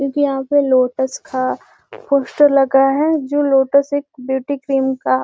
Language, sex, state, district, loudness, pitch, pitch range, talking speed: Hindi, female, Bihar, Gopalganj, -16 LUFS, 275 Hz, 265-285 Hz, 185 wpm